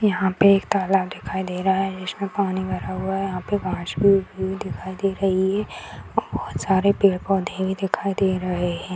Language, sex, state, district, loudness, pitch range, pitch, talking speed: Hindi, female, Bihar, Madhepura, -22 LUFS, 185-195 Hz, 190 Hz, 200 wpm